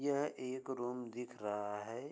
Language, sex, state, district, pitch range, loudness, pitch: Hindi, male, Uttar Pradesh, Budaun, 115-130 Hz, -42 LUFS, 125 Hz